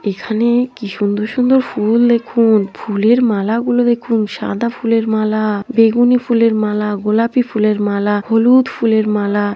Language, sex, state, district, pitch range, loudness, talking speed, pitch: Bengali, female, West Bengal, Jhargram, 210-235 Hz, -15 LUFS, 155 wpm, 225 Hz